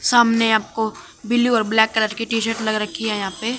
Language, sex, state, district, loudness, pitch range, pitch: Hindi, male, Haryana, Jhajjar, -19 LUFS, 215-230 Hz, 225 Hz